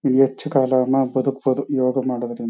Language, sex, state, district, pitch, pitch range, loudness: Kannada, male, Karnataka, Chamarajanagar, 130 Hz, 130-135 Hz, -20 LUFS